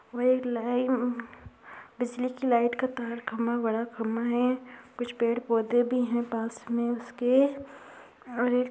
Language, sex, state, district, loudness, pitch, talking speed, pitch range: Hindi, female, Uttar Pradesh, Gorakhpur, -28 LUFS, 240 Hz, 160 wpm, 235-250 Hz